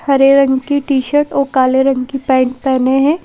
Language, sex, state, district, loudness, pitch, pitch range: Hindi, female, Madhya Pradesh, Bhopal, -13 LUFS, 270 Hz, 260-280 Hz